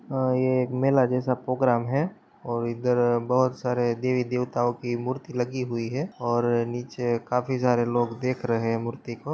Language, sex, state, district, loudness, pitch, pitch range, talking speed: Hindi, male, Maharashtra, Pune, -26 LUFS, 125 Hz, 120-130 Hz, 175 wpm